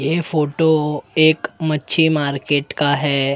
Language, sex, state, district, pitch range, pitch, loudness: Hindi, male, Maharashtra, Mumbai Suburban, 145-160 Hz, 150 Hz, -18 LUFS